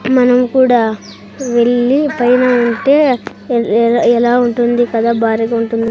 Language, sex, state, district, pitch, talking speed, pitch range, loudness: Telugu, female, Andhra Pradesh, Sri Satya Sai, 240 Hz, 110 wpm, 230-250 Hz, -12 LUFS